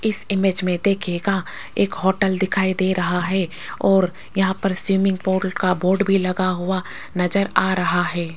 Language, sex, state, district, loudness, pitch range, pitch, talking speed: Hindi, female, Rajasthan, Jaipur, -20 LUFS, 180-195 Hz, 190 Hz, 165 wpm